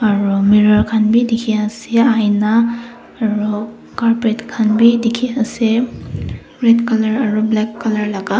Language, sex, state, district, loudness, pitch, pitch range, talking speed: Nagamese, female, Nagaland, Dimapur, -15 LUFS, 225 Hz, 215-235 Hz, 120 wpm